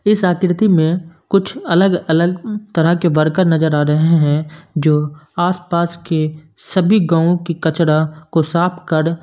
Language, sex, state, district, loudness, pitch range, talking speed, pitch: Hindi, male, Punjab, Kapurthala, -16 LUFS, 155-180 Hz, 155 wpm, 170 Hz